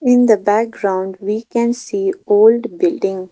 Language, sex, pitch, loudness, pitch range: English, female, 225 Hz, -16 LUFS, 205-245 Hz